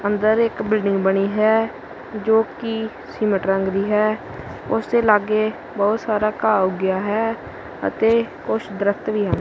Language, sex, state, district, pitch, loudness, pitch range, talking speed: Punjabi, male, Punjab, Kapurthala, 215 Hz, -20 LUFS, 200-220 Hz, 155 wpm